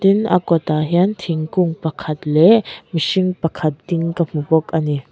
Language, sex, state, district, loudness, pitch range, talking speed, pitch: Mizo, female, Mizoram, Aizawl, -18 LUFS, 155-180 Hz, 165 wpm, 165 Hz